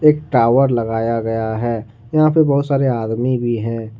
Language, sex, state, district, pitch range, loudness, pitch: Hindi, male, Jharkhand, Ranchi, 115-140 Hz, -17 LUFS, 120 Hz